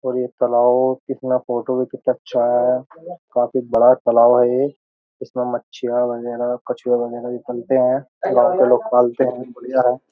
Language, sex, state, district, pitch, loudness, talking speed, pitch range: Hindi, male, Uttar Pradesh, Jyotiba Phule Nagar, 125 Hz, -18 LUFS, 180 wpm, 120-130 Hz